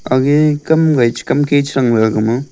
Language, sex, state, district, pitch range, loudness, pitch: Wancho, male, Arunachal Pradesh, Longding, 120-150 Hz, -13 LUFS, 140 Hz